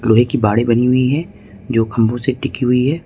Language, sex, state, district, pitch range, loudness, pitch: Hindi, male, Jharkhand, Ranchi, 115-130 Hz, -16 LUFS, 120 Hz